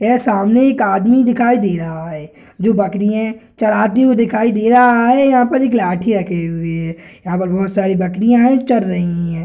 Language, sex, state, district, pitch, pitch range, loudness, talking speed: Hindi, male, Bihar, Gaya, 215 Hz, 185-240 Hz, -14 LUFS, 210 wpm